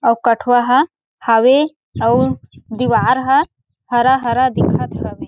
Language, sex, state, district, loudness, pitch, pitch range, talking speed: Chhattisgarhi, female, Chhattisgarh, Sarguja, -15 LUFS, 245 Hz, 235-265 Hz, 115 wpm